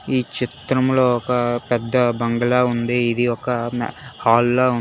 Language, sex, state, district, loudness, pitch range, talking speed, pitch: Telugu, male, Telangana, Hyderabad, -19 LUFS, 120-125 Hz, 135 wpm, 120 Hz